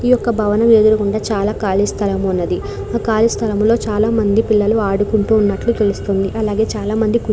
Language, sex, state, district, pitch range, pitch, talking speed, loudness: Telugu, female, Andhra Pradesh, Krishna, 205-225 Hz, 215 Hz, 180 wpm, -16 LUFS